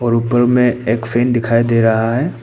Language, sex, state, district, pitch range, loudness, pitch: Hindi, male, Arunachal Pradesh, Papum Pare, 115-120 Hz, -14 LUFS, 120 Hz